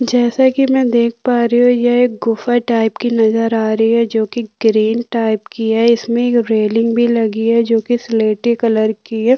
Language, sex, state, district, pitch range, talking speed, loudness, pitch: Hindi, female, Uttarakhand, Tehri Garhwal, 225-240 Hz, 205 wpm, -14 LUFS, 230 Hz